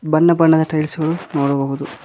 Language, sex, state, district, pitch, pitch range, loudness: Kannada, male, Karnataka, Koppal, 155 Hz, 140-160 Hz, -17 LUFS